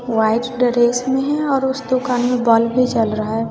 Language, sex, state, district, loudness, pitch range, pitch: Hindi, female, Bihar, West Champaran, -17 LUFS, 230-255 Hz, 245 Hz